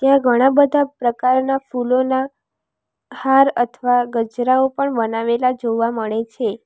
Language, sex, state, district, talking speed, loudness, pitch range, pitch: Gujarati, female, Gujarat, Valsad, 115 wpm, -18 LUFS, 235-265 Hz, 250 Hz